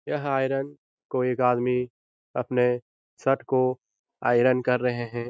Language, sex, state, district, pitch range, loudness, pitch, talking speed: Hindi, male, Bihar, Jahanabad, 120-130 Hz, -25 LUFS, 125 Hz, 135 wpm